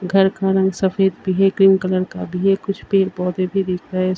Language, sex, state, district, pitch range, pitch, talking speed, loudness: Hindi, female, Uttar Pradesh, Varanasi, 185-195 Hz, 190 Hz, 245 wpm, -18 LUFS